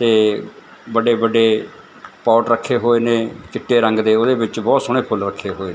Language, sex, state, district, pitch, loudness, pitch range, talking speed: Punjabi, male, Punjab, Fazilka, 115 Hz, -17 LUFS, 110-120 Hz, 190 wpm